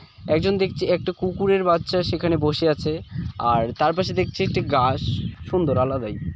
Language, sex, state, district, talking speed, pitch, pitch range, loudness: Bengali, male, West Bengal, Jalpaiguri, 150 wpm, 170 Hz, 145-185 Hz, -22 LUFS